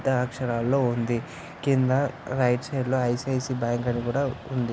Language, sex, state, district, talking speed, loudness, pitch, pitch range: Telugu, male, Andhra Pradesh, Anantapur, 150 wpm, -26 LUFS, 125 Hz, 120-135 Hz